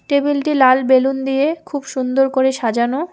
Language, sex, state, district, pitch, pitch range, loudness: Bengali, female, West Bengal, Alipurduar, 270 Hz, 260-285 Hz, -16 LUFS